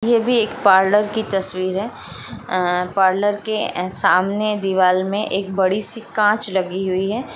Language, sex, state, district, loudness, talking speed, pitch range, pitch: Hindi, female, Bihar, Jamui, -19 LUFS, 155 wpm, 185-215 Hz, 195 Hz